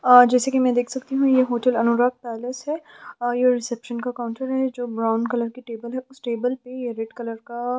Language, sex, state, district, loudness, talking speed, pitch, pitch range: Hindi, female, Chhattisgarh, Sukma, -23 LUFS, 225 wpm, 245 Hz, 235-255 Hz